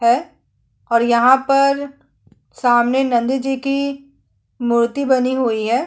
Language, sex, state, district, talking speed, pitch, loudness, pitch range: Hindi, female, Chhattisgarh, Kabirdham, 125 wpm, 260 Hz, -17 LUFS, 240-275 Hz